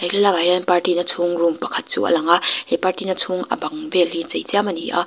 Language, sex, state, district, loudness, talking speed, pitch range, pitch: Mizo, female, Mizoram, Aizawl, -19 LUFS, 305 wpm, 170-185 Hz, 175 Hz